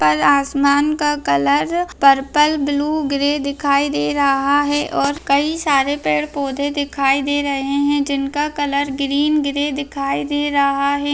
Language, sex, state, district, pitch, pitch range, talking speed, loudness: Hindi, female, Bihar, Darbhanga, 285 Hz, 275-290 Hz, 145 wpm, -17 LUFS